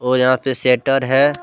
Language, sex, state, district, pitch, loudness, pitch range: Hindi, male, Jharkhand, Deoghar, 130 Hz, -16 LUFS, 125-135 Hz